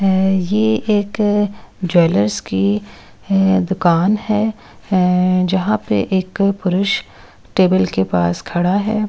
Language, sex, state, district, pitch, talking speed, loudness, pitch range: Hindi, female, Delhi, New Delhi, 190 Hz, 100 wpm, -17 LUFS, 170-205 Hz